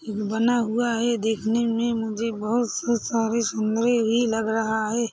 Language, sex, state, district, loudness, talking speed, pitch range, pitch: Hindi, female, Chhattisgarh, Rajnandgaon, -24 LUFS, 165 wpm, 220-235 Hz, 230 Hz